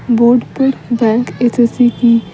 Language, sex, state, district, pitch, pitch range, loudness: Hindi, female, Bihar, Patna, 240 Hz, 230-245 Hz, -13 LUFS